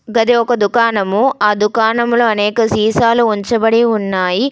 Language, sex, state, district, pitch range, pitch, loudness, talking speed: Telugu, female, Telangana, Hyderabad, 210-235 Hz, 225 Hz, -13 LUFS, 120 wpm